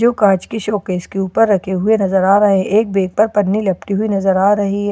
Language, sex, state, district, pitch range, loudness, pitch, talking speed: Hindi, female, Bihar, Katihar, 190-210 Hz, -15 LUFS, 200 Hz, 265 wpm